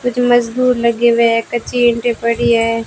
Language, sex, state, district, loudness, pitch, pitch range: Hindi, female, Rajasthan, Bikaner, -14 LUFS, 235 Hz, 235-245 Hz